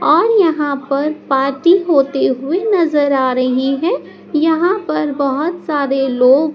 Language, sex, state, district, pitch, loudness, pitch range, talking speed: Hindi, male, Madhya Pradesh, Dhar, 295 Hz, -15 LUFS, 270-330 Hz, 135 wpm